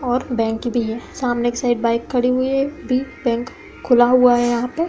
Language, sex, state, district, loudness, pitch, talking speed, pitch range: Hindi, female, Uttar Pradesh, Hamirpur, -19 LUFS, 245 Hz, 235 wpm, 240-255 Hz